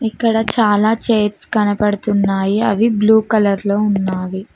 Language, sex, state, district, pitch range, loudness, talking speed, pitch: Telugu, female, Telangana, Mahabubabad, 200-220 Hz, -15 LUFS, 120 wpm, 210 Hz